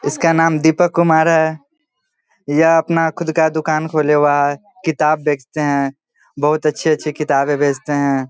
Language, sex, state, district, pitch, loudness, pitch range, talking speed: Hindi, male, Bihar, Samastipur, 155 Hz, -16 LUFS, 145-165 Hz, 135 wpm